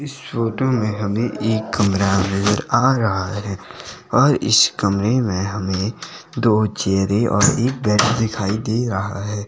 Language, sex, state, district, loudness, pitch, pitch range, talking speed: Hindi, male, Himachal Pradesh, Shimla, -19 LUFS, 105 Hz, 100-115 Hz, 150 wpm